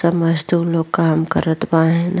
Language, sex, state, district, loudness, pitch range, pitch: Hindi, female, Bihar, Vaishali, -17 LUFS, 160-170 Hz, 165 Hz